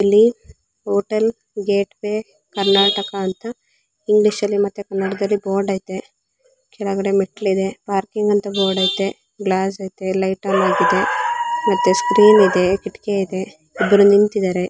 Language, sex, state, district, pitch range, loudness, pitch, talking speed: Kannada, female, Karnataka, Belgaum, 195-210 Hz, -18 LUFS, 200 Hz, 120 wpm